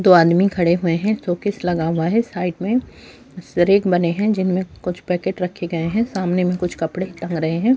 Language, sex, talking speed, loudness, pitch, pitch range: Urdu, female, 210 wpm, -19 LUFS, 180 Hz, 175-195 Hz